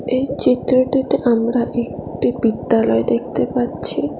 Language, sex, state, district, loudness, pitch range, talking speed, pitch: Bengali, female, West Bengal, Alipurduar, -18 LUFS, 225-255 Hz, 100 wpm, 245 Hz